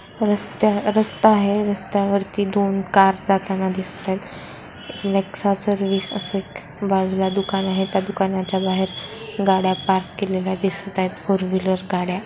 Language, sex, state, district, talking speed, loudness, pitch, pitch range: Marathi, female, Maharashtra, Solapur, 120 wpm, -21 LUFS, 195 Hz, 190-200 Hz